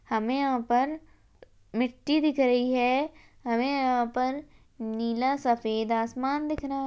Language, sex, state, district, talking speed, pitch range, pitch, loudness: Hindi, female, Chhattisgarh, Jashpur, 130 wpm, 235-275 Hz, 255 Hz, -27 LUFS